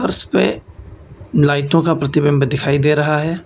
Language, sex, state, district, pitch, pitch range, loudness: Hindi, male, Uttar Pradesh, Lucknow, 150 Hz, 140-160 Hz, -16 LUFS